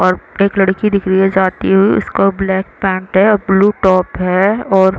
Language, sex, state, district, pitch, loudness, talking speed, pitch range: Hindi, female, Chhattisgarh, Raigarh, 195 Hz, -13 LUFS, 205 wpm, 190-195 Hz